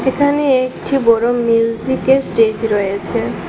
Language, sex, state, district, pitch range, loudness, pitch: Bengali, female, Assam, Hailakandi, 225-265 Hz, -15 LUFS, 240 Hz